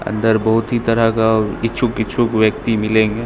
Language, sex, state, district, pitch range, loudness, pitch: Hindi, male, Bihar, Katihar, 110-115 Hz, -16 LUFS, 110 Hz